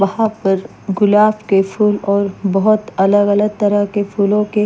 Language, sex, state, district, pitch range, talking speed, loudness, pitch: Hindi, female, Maharashtra, Mumbai Suburban, 195-210 Hz, 155 wpm, -15 LUFS, 205 Hz